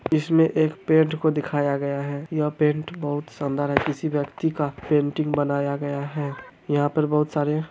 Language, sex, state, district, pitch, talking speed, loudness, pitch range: Hindi, male, Bihar, Bhagalpur, 150 Hz, 180 wpm, -24 LUFS, 145-155 Hz